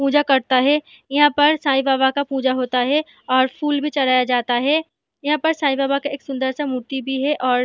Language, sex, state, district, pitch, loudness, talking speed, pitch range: Hindi, female, Jharkhand, Sahebganj, 275 Hz, -19 LUFS, 225 wpm, 260-295 Hz